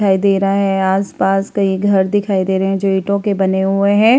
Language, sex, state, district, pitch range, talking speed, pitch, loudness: Hindi, female, Uttar Pradesh, Hamirpur, 190-200 Hz, 255 wpm, 195 Hz, -15 LUFS